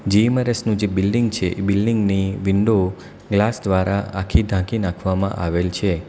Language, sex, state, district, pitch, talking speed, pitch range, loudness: Gujarati, male, Gujarat, Valsad, 100 Hz, 140 wpm, 95-105 Hz, -20 LUFS